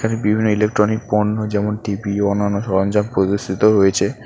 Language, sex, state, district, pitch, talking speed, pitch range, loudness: Bengali, male, West Bengal, Alipurduar, 105 Hz, 140 wpm, 100-105 Hz, -18 LUFS